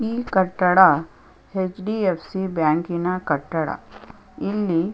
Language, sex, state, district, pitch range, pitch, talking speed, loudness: Kannada, female, Karnataka, Chamarajanagar, 165-190 Hz, 180 Hz, 75 wpm, -21 LUFS